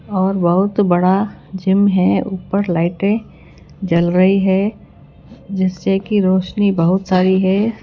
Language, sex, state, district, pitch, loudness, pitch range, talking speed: Hindi, female, Chhattisgarh, Raipur, 190 Hz, -16 LUFS, 185-200 Hz, 125 wpm